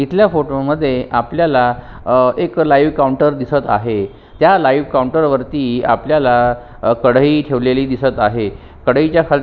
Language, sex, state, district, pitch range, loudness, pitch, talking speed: Marathi, male, Maharashtra, Sindhudurg, 120-150 Hz, -14 LUFS, 130 Hz, 135 wpm